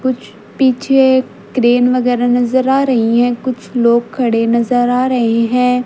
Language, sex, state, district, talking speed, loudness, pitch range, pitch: Hindi, female, Haryana, Jhajjar, 155 wpm, -13 LUFS, 235-255 Hz, 245 Hz